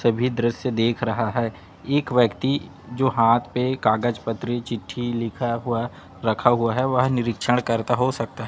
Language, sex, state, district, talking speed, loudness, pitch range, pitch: Hindi, male, Chhattisgarh, Raipur, 170 wpm, -23 LUFS, 115-125 Hz, 120 Hz